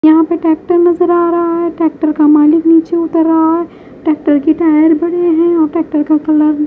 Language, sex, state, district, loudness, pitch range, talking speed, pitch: Hindi, female, Haryana, Jhajjar, -11 LUFS, 310-340 Hz, 215 wpm, 325 Hz